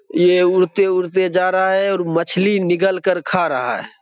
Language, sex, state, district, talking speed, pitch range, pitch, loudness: Hindi, male, Bihar, Begusarai, 180 wpm, 180-195 Hz, 185 Hz, -17 LUFS